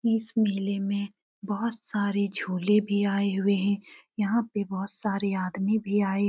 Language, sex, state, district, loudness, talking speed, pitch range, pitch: Hindi, female, Uttar Pradesh, Etah, -27 LUFS, 170 wpm, 200-210 Hz, 200 Hz